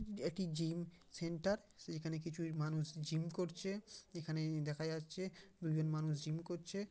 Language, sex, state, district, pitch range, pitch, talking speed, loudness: Bengali, male, West Bengal, Kolkata, 155-190 Hz, 165 Hz, 145 wpm, -43 LUFS